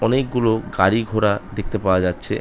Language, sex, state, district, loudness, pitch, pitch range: Bengali, male, West Bengal, North 24 Parganas, -20 LUFS, 110 Hz, 95-115 Hz